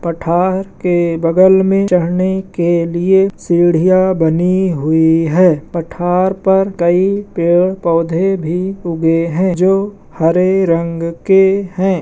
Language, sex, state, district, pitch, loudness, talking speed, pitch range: Hindi, male, Bihar, Madhepura, 180 Hz, -13 LUFS, 125 wpm, 170-190 Hz